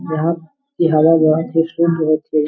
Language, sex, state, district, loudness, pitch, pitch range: Hindi, male, Bihar, Darbhanga, -16 LUFS, 165 Hz, 155-170 Hz